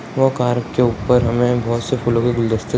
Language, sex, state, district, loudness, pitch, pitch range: Hindi, male, Bihar, Purnia, -17 LUFS, 120 Hz, 115-125 Hz